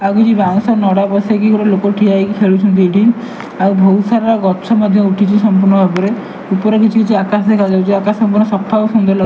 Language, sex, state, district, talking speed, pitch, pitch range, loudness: Odia, male, Odisha, Malkangiri, 195 wpm, 205 Hz, 195-215 Hz, -12 LUFS